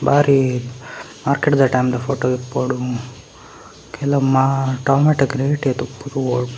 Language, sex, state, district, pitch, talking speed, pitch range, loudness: Tulu, male, Karnataka, Dakshina Kannada, 130 Hz, 110 wpm, 125-140 Hz, -18 LUFS